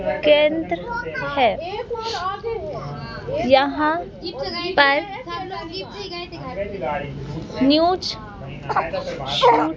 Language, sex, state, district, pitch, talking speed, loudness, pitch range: Hindi, female, Madhya Pradesh, Bhopal, 315 Hz, 35 wpm, -21 LUFS, 270-375 Hz